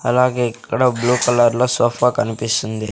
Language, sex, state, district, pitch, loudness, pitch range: Telugu, male, Andhra Pradesh, Sri Satya Sai, 120 Hz, -17 LUFS, 115-125 Hz